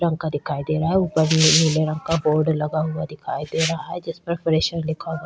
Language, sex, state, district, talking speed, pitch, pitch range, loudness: Hindi, female, Chhattisgarh, Sukma, 260 wpm, 160 Hz, 155-165 Hz, -21 LUFS